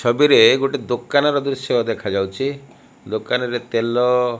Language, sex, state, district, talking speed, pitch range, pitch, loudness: Odia, male, Odisha, Malkangiri, 110 wpm, 120-135 Hz, 125 Hz, -18 LUFS